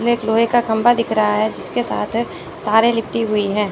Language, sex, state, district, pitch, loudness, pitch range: Hindi, female, Chandigarh, Chandigarh, 220 Hz, -18 LUFS, 215-230 Hz